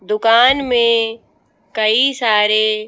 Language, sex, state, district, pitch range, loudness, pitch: Hindi, female, Madhya Pradesh, Bhopal, 215-240 Hz, -14 LUFS, 225 Hz